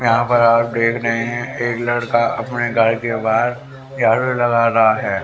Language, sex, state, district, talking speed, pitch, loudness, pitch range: Hindi, male, Haryana, Rohtak, 185 wpm, 115 Hz, -17 LUFS, 115-120 Hz